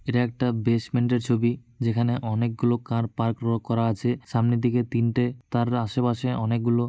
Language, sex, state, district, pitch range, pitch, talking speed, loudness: Bengali, male, West Bengal, Malda, 115-120 Hz, 120 Hz, 155 wpm, -25 LUFS